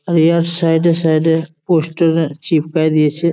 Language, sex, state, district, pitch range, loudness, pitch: Bengali, male, West Bengal, Jalpaiguri, 160-170 Hz, -15 LUFS, 165 Hz